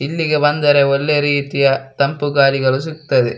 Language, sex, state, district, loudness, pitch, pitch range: Kannada, male, Karnataka, Dakshina Kannada, -15 LUFS, 140 Hz, 135-150 Hz